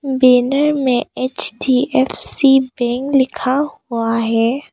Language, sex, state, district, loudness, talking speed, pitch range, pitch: Hindi, female, Arunachal Pradesh, Papum Pare, -15 LUFS, 90 wpm, 235-270 Hz, 255 Hz